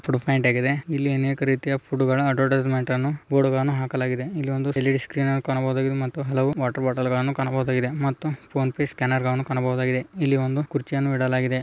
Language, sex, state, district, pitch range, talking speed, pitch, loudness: Kannada, male, Karnataka, Raichur, 130-140 Hz, 180 wpm, 135 Hz, -23 LUFS